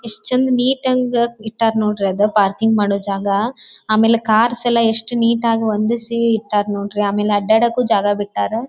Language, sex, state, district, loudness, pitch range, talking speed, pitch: Kannada, female, Karnataka, Dharwad, -16 LUFS, 205-235 Hz, 140 wpm, 220 Hz